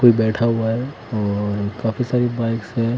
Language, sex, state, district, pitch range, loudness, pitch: Hindi, male, Himachal Pradesh, Shimla, 110-120 Hz, -21 LUFS, 115 Hz